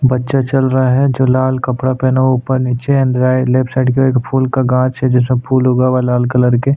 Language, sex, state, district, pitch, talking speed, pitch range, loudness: Hindi, male, Goa, North and South Goa, 130 Hz, 230 wpm, 125-130 Hz, -13 LUFS